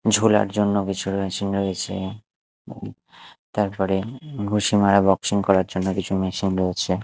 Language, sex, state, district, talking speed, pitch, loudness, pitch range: Bengali, male, Odisha, Malkangiri, 130 wpm, 100 Hz, -22 LUFS, 95-105 Hz